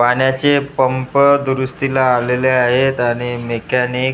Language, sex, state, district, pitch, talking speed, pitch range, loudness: Marathi, male, Maharashtra, Gondia, 130 Hz, 115 wpm, 125-135 Hz, -15 LUFS